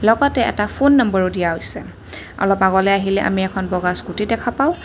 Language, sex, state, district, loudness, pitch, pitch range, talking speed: Assamese, female, Assam, Kamrup Metropolitan, -18 LUFS, 195 Hz, 180-225 Hz, 185 wpm